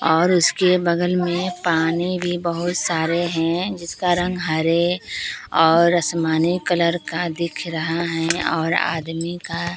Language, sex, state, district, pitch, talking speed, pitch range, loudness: Hindi, female, Bihar, Katihar, 170 Hz, 140 wpm, 165-175 Hz, -20 LUFS